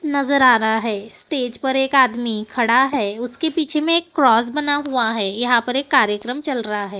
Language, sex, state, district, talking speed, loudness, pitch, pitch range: Hindi, male, Maharashtra, Gondia, 215 wpm, -18 LUFS, 250 Hz, 225-280 Hz